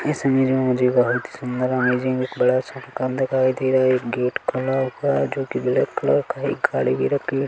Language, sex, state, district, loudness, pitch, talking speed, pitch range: Hindi, male, Chhattisgarh, Kabirdham, -21 LUFS, 130 Hz, 250 wpm, 125-130 Hz